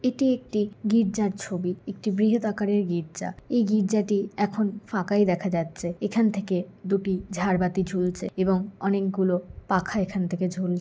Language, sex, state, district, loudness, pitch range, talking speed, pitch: Bengali, female, West Bengal, Kolkata, -26 LUFS, 185-210 Hz, 140 wpm, 195 Hz